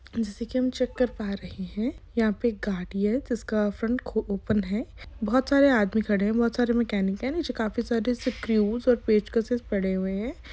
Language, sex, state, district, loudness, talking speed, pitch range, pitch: Hindi, female, Jharkhand, Sahebganj, -26 LUFS, 175 wpm, 210-245 Hz, 230 Hz